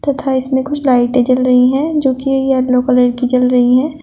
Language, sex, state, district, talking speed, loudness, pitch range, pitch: Hindi, female, Uttar Pradesh, Shamli, 225 wpm, -13 LUFS, 250-270 Hz, 255 Hz